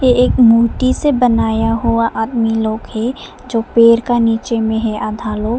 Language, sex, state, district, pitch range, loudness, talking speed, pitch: Hindi, female, Arunachal Pradesh, Papum Pare, 225-240 Hz, -14 LUFS, 170 wpm, 230 Hz